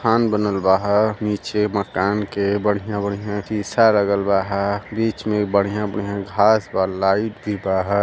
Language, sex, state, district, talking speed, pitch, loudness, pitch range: Hindi, male, Uttar Pradesh, Varanasi, 135 wpm, 100 Hz, -20 LUFS, 100-105 Hz